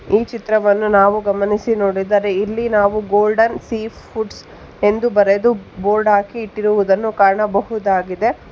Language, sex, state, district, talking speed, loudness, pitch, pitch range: Kannada, female, Karnataka, Bangalore, 115 wpm, -16 LUFS, 210 Hz, 200-220 Hz